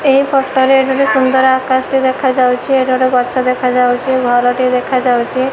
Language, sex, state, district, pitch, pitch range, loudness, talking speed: Odia, female, Odisha, Malkangiri, 260 Hz, 250-265 Hz, -12 LUFS, 195 wpm